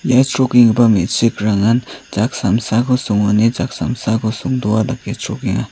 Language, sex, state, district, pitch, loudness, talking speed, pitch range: Garo, male, Meghalaya, South Garo Hills, 115 Hz, -16 LUFS, 115 wpm, 105-125 Hz